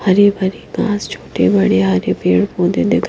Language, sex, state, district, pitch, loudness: Hindi, female, Himachal Pradesh, Shimla, 190 Hz, -15 LUFS